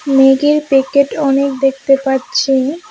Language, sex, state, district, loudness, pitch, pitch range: Bengali, female, West Bengal, Alipurduar, -13 LUFS, 275 Hz, 270-285 Hz